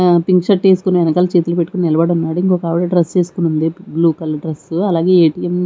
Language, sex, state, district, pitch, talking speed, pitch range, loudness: Telugu, female, Andhra Pradesh, Manyam, 175 Hz, 225 wpm, 165-180 Hz, -15 LUFS